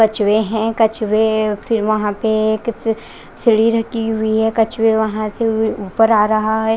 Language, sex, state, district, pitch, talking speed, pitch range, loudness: Hindi, female, Chandigarh, Chandigarh, 220 Hz, 160 wpm, 215-225 Hz, -16 LUFS